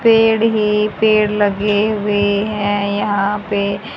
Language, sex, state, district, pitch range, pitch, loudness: Hindi, female, Haryana, Charkhi Dadri, 205-215 Hz, 210 Hz, -16 LUFS